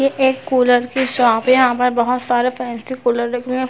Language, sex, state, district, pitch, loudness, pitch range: Hindi, female, Chhattisgarh, Sarguja, 250 Hz, -16 LUFS, 245-260 Hz